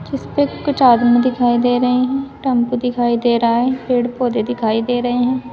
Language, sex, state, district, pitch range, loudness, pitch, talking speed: Hindi, female, Uttar Pradesh, Saharanpur, 240-255 Hz, -16 LUFS, 245 Hz, 195 wpm